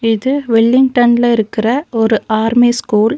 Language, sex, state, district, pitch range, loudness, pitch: Tamil, female, Tamil Nadu, Nilgiris, 220-245 Hz, -12 LUFS, 230 Hz